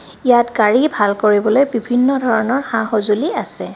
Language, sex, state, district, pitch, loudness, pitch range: Assamese, female, Assam, Kamrup Metropolitan, 235 Hz, -15 LUFS, 215-260 Hz